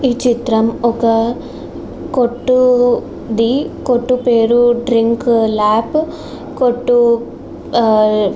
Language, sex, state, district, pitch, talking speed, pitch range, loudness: Telugu, female, Andhra Pradesh, Srikakulam, 235 Hz, 85 wpm, 230-250 Hz, -14 LUFS